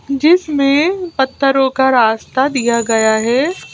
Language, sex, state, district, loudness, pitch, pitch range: Hindi, female, Madhya Pradesh, Bhopal, -14 LUFS, 270 Hz, 240-290 Hz